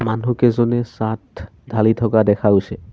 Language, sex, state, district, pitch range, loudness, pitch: Assamese, male, Assam, Sonitpur, 105-120 Hz, -17 LUFS, 110 Hz